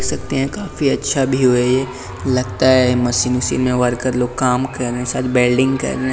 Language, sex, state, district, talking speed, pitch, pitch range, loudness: Hindi, male, Bihar, Jamui, 225 wpm, 125 Hz, 125-130 Hz, -17 LUFS